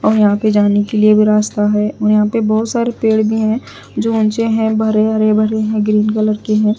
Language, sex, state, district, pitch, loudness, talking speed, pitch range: Hindi, female, Punjab, Pathankot, 215 Hz, -14 LUFS, 245 wpm, 210-220 Hz